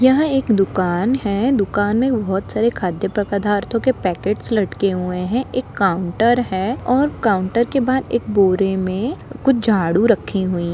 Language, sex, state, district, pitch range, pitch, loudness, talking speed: Hindi, female, Jharkhand, Jamtara, 190-245 Hz, 205 Hz, -18 LUFS, 170 wpm